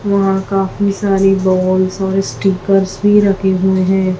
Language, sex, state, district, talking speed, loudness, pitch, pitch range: Hindi, female, Chhattisgarh, Raipur, 145 wpm, -14 LUFS, 195 Hz, 190-195 Hz